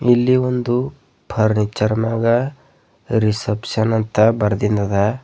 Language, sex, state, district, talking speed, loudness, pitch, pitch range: Kannada, male, Karnataka, Bidar, 90 wpm, -18 LUFS, 110 Hz, 105-125 Hz